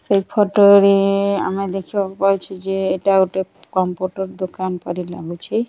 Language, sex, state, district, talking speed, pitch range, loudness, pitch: Odia, female, Odisha, Nuapada, 135 wpm, 185-195 Hz, -18 LUFS, 195 Hz